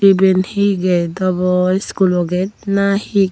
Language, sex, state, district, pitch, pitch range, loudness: Chakma, female, Tripura, Unakoti, 190 Hz, 180-200 Hz, -16 LUFS